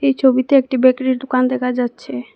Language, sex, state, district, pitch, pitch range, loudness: Bengali, female, Assam, Hailakandi, 255 Hz, 250-260 Hz, -16 LUFS